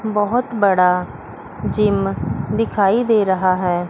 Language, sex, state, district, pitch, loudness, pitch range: Hindi, female, Chandigarh, Chandigarh, 195 Hz, -18 LUFS, 185-215 Hz